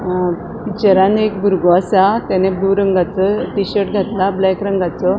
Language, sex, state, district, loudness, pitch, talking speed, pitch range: Konkani, female, Goa, North and South Goa, -15 LUFS, 190 Hz, 140 wpm, 185-200 Hz